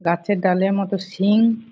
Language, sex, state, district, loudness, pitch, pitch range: Bengali, female, West Bengal, Paschim Medinipur, -19 LUFS, 195 Hz, 185-205 Hz